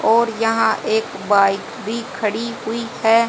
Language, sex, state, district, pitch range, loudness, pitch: Hindi, female, Haryana, Jhajjar, 220-230 Hz, -19 LUFS, 225 Hz